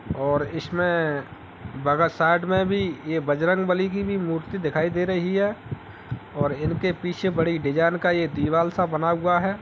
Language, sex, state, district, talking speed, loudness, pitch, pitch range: Hindi, male, Uttar Pradesh, Etah, 180 wpm, -23 LUFS, 170 Hz, 155-180 Hz